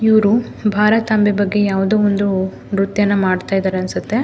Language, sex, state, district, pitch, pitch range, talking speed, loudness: Kannada, female, Karnataka, Mysore, 205 Hz, 195-215 Hz, 125 wpm, -16 LUFS